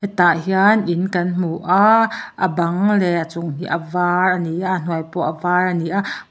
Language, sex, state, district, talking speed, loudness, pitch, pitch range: Mizo, male, Mizoram, Aizawl, 230 wpm, -18 LUFS, 180 Hz, 170-190 Hz